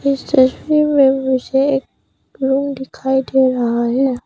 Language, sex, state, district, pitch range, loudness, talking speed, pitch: Hindi, female, Arunachal Pradesh, Papum Pare, 260-275 Hz, -16 LUFS, 140 wpm, 265 Hz